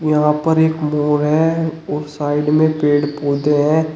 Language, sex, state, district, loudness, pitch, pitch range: Hindi, male, Uttar Pradesh, Shamli, -16 LUFS, 150 Hz, 150-160 Hz